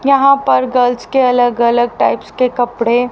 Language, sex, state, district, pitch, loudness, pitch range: Hindi, female, Haryana, Rohtak, 245 Hz, -13 LUFS, 240-260 Hz